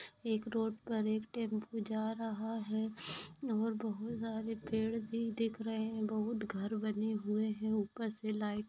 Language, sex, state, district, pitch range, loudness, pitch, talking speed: Bhojpuri, female, Bihar, Saran, 215-225 Hz, -38 LUFS, 220 Hz, 170 wpm